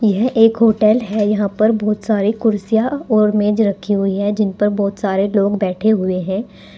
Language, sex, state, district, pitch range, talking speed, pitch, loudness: Hindi, female, Uttar Pradesh, Saharanpur, 200-220 Hz, 195 wpm, 210 Hz, -16 LUFS